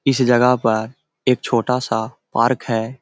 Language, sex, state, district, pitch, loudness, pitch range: Hindi, male, Bihar, Jahanabad, 120 Hz, -19 LUFS, 115-125 Hz